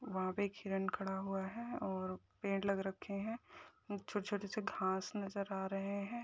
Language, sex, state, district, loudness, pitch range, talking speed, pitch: Hindi, female, Rajasthan, Churu, -41 LUFS, 190-205 Hz, 190 wpm, 200 Hz